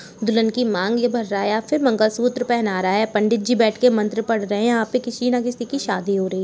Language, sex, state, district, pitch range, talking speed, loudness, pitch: Hindi, female, Uttar Pradesh, Jalaun, 210-245 Hz, 300 wpm, -20 LUFS, 225 Hz